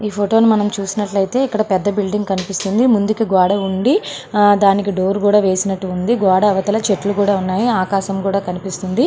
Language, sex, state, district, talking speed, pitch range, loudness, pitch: Telugu, female, Andhra Pradesh, Srikakulam, 185 wpm, 195-210 Hz, -16 LUFS, 200 Hz